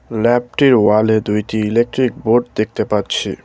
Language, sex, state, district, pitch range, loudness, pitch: Bengali, male, West Bengal, Cooch Behar, 110-120 Hz, -15 LUFS, 115 Hz